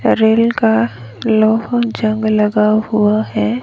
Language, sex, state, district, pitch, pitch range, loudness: Hindi, female, Haryana, Rohtak, 215 Hz, 210-225 Hz, -14 LUFS